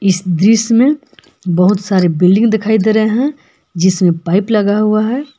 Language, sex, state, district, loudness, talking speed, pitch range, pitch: Hindi, female, Jharkhand, Palamu, -13 LUFS, 165 wpm, 185-225 Hz, 210 Hz